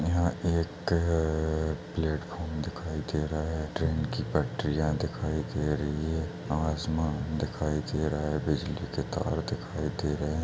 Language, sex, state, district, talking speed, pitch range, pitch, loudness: Hindi, male, Uttar Pradesh, Deoria, 150 wpm, 75-80 Hz, 80 Hz, -31 LUFS